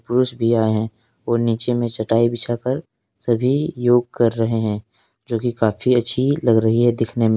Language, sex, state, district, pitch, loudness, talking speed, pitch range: Hindi, male, Jharkhand, Deoghar, 115 Hz, -19 LUFS, 180 wpm, 115-120 Hz